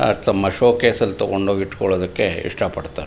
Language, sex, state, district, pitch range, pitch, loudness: Kannada, male, Karnataka, Mysore, 95-100 Hz, 95 Hz, -19 LUFS